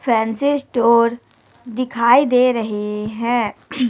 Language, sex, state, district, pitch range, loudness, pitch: Hindi, female, Chhattisgarh, Raipur, 225-250 Hz, -17 LUFS, 235 Hz